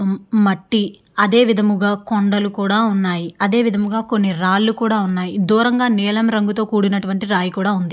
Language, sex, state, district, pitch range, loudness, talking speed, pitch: Telugu, female, Andhra Pradesh, Srikakulam, 195-220 Hz, -17 LUFS, 160 wpm, 205 Hz